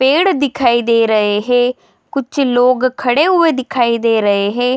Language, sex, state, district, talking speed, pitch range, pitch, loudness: Hindi, female, Chhattisgarh, Bilaspur, 175 wpm, 230-270 Hz, 245 Hz, -14 LUFS